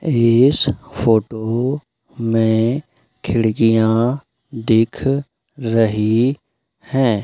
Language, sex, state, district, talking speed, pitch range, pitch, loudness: Hindi, male, Madhya Pradesh, Umaria, 60 wpm, 110-130 Hz, 115 Hz, -17 LUFS